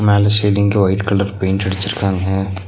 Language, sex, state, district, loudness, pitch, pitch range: Tamil, male, Tamil Nadu, Nilgiris, -16 LUFS, 100 Hz, 95-100 Hz